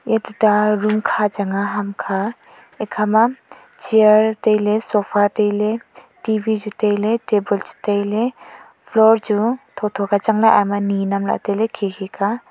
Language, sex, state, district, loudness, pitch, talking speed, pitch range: Wancho, female, Arunachal Pradesh, Longding, -18 LUFS, 210 Hz, 170 wpm, 205-220 Hz